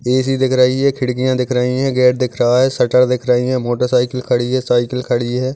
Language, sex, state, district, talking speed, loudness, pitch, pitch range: Hindi, male, Maharashtra, Aurangabad, 235 wpm, -15 LUFS, 125 Hz, 125-130 Hz